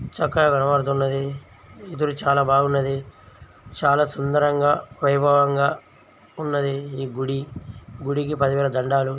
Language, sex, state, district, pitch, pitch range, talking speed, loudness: Telugu, female, Andhra Pradesh, Guntur, 140 Hz, 135-145 Hz, 105 wpm, -21 LUFS